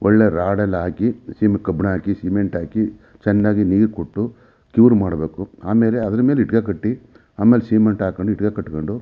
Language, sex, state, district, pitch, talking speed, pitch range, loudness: Kannada, male, Karnataka, Mysore, 105 Hz, 155 wpm, 95-110 Hz, -18 LUFS